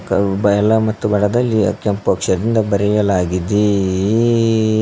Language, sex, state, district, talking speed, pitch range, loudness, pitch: Kannada, male, Karnataka, Koppal, 75 wpm, 100-110 Hz, -16 LUFS, 105 Hz